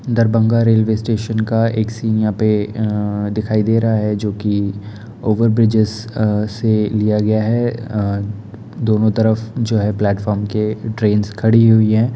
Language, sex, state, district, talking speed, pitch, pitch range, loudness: Hindi, male, Bihar, Darbhanga, 150 wpm, 110 Hz, 105-115 Hz, -16 LUFS